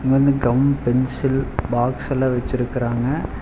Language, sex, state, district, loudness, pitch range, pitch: Tamil, male, Tamil Nadu, Chennai, -20 LUFS, 120-135 Hz, 130 Hz